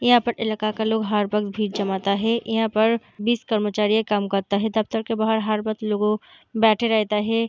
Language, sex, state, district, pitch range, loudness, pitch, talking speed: Hindi, female, Bihar, Darbhanga, 210-225 Hz, -22 LUFS, 220 Hz, 230 wpm